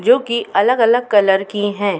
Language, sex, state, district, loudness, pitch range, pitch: Hindi, female, Uttar Pradesh, Muzaffarnagar, -15 LUFS, 200-240 Hz, 210 Hz